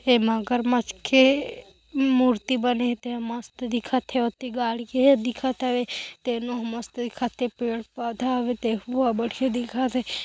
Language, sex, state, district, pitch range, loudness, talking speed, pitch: Hindi, female, Chhattisgarh, Korba, 235-255 Hz, -25 LUFS, 160 wpm, 245 Hz